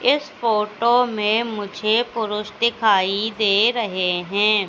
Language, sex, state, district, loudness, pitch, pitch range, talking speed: Hindi, female, Madhya Pradesh, Katni, -20 LUFS, 215 Hz, 205-235 Hz, 115 wpm